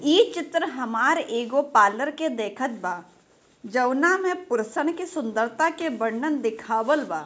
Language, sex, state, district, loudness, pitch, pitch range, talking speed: Bhojpuri, female, Bihar, Gopalganj, -24 LUFS, 275 Hz, 225-320 Hz, 140 wpm